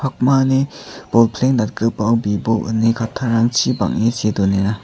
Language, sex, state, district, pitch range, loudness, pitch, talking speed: Garo, male, Meghalaya, South Garo Hills, 110-125 Hz, -17 LUFS, 115 Hz, 110 wpm